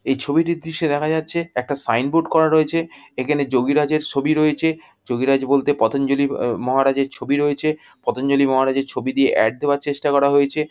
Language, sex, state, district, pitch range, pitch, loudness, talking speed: Bengali, female, West Bengal, Jhargram, 135-155 Hz, 140 Hz, -19 LUFS, 155 wpm